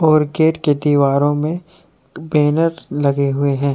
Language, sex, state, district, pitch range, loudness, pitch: Hindi, male, Jharkhand, Deoghar, 140-160 Hz, -16 LUFS, 150 Hz